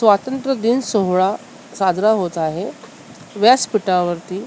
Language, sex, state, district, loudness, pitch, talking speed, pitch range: Marathi, female, Maharashtra, Mumbai Suburban, -18 LUFS, 200 Hz, 80 wpm, 185-235 Hz